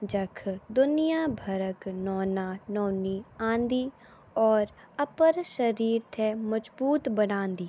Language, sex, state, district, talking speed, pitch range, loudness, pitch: Garhwali, female, Uttarakhand, Tehri Garhwal, 95 wpm, 195-255 Hz, -28 LUFS, 220 Hz